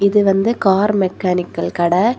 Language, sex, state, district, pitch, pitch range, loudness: Tamil, female, Tamil Nadu, Kanyakumari, 195 Hz, 180-205 Hz, -16 LUFS